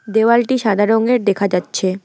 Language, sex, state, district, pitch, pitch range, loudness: Bengali, female, West Bengal, Alipurduar, 215 Hz, 200-235 Hz, -15 LUFS